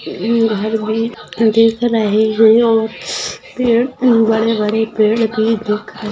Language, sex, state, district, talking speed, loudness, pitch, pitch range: Hindi, female, Bihar, Saran, 125 wpm, -15 LUFS, 225 Hz, 215-230 Hz